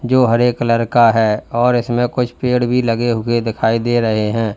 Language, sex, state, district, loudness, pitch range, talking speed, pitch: Hindi, male, Uttar Pradesh, Lalitpur, -15 LUFS, 115-120 Hz, 210 wpm, 120 Hz